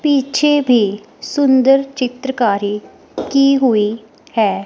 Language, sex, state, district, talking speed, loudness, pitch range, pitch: Hindi, female, Himachal Pradesh, Shimla, 90 wpm, -15 LUFS, 215-275 Hz, 255 Hz